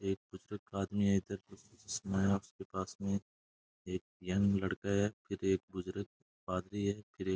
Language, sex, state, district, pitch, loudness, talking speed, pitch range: Rajasthani, male, Rajasthan, Churu, 95 Hz, -37 LUFS, 155 wpm, 95-100 Hz